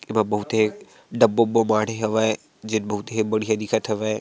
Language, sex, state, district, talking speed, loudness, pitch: Chhattisgarhi, male, Chhattisgarh, Sarguja, 170 wpm, -22 LUFS, 110 Hz